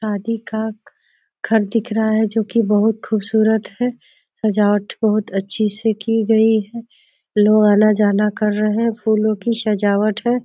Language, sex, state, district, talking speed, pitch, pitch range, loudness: Hindi, female, Uttar Pradesh, Deoria, 150 wpm, 215 Hz, 210-225 Hz, -17 LUFS